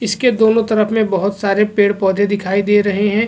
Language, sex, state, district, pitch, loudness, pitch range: Hindi, male, Goa, North and South Goa, 205 Hz, -15 LUFS, 200-220 Hz